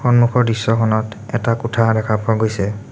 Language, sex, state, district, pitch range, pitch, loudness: Assamese, male, Assam, Sonitpur, 110-120 Hz, 115 Hz, -17 LUFS